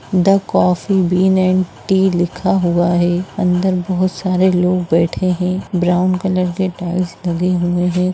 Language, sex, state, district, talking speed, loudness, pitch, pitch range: Hindi, female, Bihar, Jamui, 170 wpm, -16 LUFS, 180 Hz, 180-185 Hz